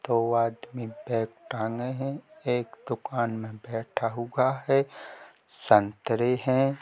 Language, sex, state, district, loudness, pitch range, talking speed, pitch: Hindi, male, Jharkhand, Jamtara, -28 LUFS, 115-130 Hz, 115 wpm, 120 Hz